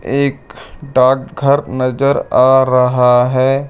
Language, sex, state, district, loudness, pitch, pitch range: Hindi, male, Chandigarh, Chandigarh, -13 LUFS, 130 Hz, 125-140 Hz